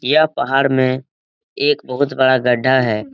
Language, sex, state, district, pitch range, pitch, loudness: Hindi, male, Bihar, Lakhisarai, 130-150 Hz, 130 Hz, -16 LUFS